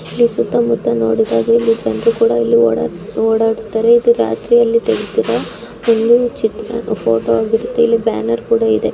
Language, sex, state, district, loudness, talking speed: Kannada, female, Karnataka, Dakshina Kannada, -14 LUFS, 120 wpm